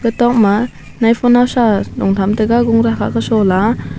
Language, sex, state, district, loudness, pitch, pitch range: Wancho, female, Arunachal Pradesh, Longding, -13 LUFS, 225 Hz, 205-240 Hz